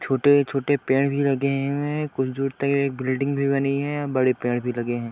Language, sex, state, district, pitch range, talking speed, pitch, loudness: Hindi, male, Uttar Pradesh, Deoria, 130-140 Hz, 235 wpm, 140 Hz, -23 LUFS